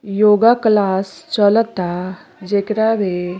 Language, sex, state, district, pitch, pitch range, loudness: Bhojpuri, female, Uttar Pradesh, Deoria, 205 Hz, 185-220 Hz, -16 LUFS